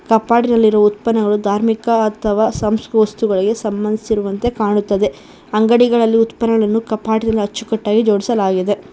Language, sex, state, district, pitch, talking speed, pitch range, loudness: Kannada, female, Karnataka, Bangalore, 220 Hz, 85 wpm, 210-225 Hz, -15 LUFS